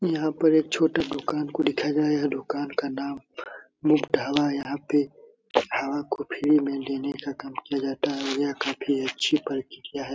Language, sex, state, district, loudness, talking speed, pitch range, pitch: Hindi, male, Bihar, Supaul, -26 LUFS, 185 wpm, 140-150 Hz, 145 Hz